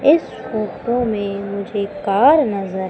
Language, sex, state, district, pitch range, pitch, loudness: Hindi, female, Madhya Pradesh, Umaria, 200-245 Hz, 205 Hz, -19 LUFS